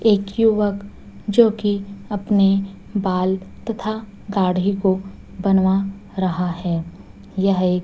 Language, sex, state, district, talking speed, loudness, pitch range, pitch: Hindi, female, Chhattisgarh, Raipur, 100 wpm, -20 LUFS, 190-205 Hz, 195 Hz